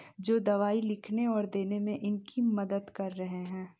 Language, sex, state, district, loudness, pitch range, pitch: Hindi, female, Bihar, East Champaran, -32 LUFS, 195-215 Hz, 205 Hz